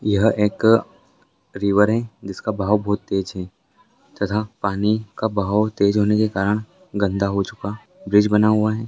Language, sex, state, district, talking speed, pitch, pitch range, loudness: Maithili, male, Bihar, Purnia, 155 wpm, 105 Hz, 100-110 Hz, -20 LUFS